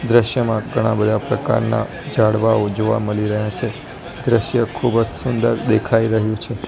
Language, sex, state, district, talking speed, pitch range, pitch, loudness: Gujarati, male, Gujarat, Gandhinagar, 145 wpm, 110-120 Hz, 115 Hz, -18 LUFS